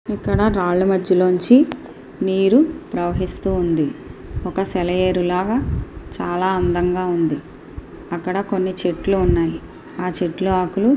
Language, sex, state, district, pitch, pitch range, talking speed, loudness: Telugu, female, Andhra Pradesh, Srikakulam, 185 Hz, 175-195 Hz, 110 wpm, -19 LUFS